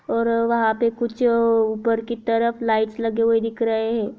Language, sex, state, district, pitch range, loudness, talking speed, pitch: Hindi, female, Chhattisgarh, Raigarh, 225-235 Hz, -21 LUFS, 170 wpm, 230 Hz